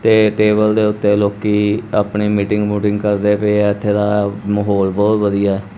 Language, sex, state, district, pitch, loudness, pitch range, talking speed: Punjabi, male, Punjab, Kapurthala, 105 Hz, -15 LUFS, 100-105 Hz, 165 wpm